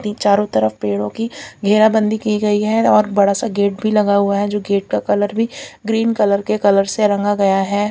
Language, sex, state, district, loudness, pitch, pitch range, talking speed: Hindi, female, Bihar, Katihar, -16 LUFS, 205 Hz, 200-215 Hz, 225 wpm